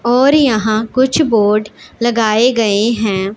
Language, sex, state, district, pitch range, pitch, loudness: Hindi, female, Punjab, Pathankot, 215-250 Hz, 225 Hz, -13 LUFS